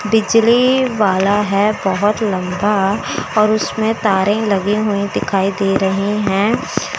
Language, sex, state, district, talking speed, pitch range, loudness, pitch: Hindi, female, Chandigarh, Chandigarh, 120 wpm, 195-215 Hz, -15 LUFS, 205 Hz